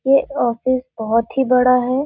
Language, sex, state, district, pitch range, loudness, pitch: Hindi, female, Chhattisgarh, Sarguja, 240-265 Hz, -17 LUFS, 250 Hz